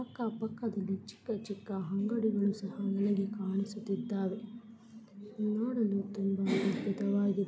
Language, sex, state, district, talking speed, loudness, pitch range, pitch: Kannada, female, Karnataka, Dakshina Kannada, 90 wpm, -34 LUFS, 200-220 Hz, 205 Hz